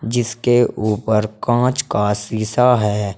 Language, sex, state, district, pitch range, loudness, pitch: Hindi, male, Uttar Pradesh, Saharanpur, 105-120 Hz, -17 LUFS, 110 Hz